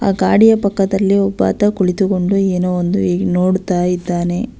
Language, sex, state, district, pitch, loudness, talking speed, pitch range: Kannada, female, Karnataka, Belgaum, 190 Hz, -15 LUFS, 115 wpm, 180-200 Hz